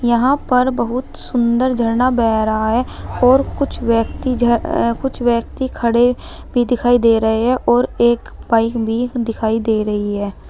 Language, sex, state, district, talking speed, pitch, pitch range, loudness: Hindi, female, Uttar Pradesh, Saharanpur, 155 wpm, 240 Hz, 230-250 Hz, -16 LUFS